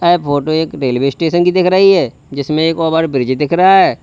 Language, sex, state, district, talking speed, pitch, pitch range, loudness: Hindi, male, Uttar Pradesh, Lalitpur, 240 wpm, 160 Hz, 140-175 Hz, -13 LUFS